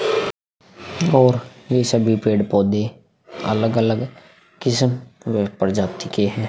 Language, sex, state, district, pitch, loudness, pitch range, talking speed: Hindi, male, Uttar Pradesh, Hamirpur, 115 Hz, -20 LUFS, 110-125 Hz, 90 wpm